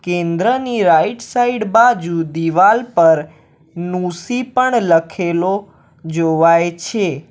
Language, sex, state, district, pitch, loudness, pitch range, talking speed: Gujarati, male, Gujarat, Valsad, 175 Hz, -15 LUFS, 165-230 Hz, 90 wpm